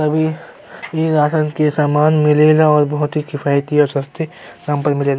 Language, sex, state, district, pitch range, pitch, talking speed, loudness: Bhojpuri, male, Uttar Pradesh, Gorakhpur, 145-155 Hz, 150 Hz, 195 wpm, -16 LUFS